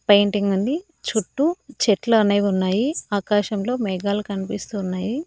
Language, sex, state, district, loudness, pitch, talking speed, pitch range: Telugu, female, Andhra Pradesh, Annamaya, -22 LUFS, 205 Hz, 100 wpm, 200-245 Hz